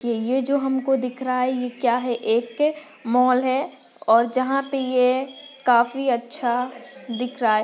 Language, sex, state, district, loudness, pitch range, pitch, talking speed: Hindi, female, Maharashtra, Pune, -22 LUFS, 240-265 Hz, 255 Hz, 175 wpm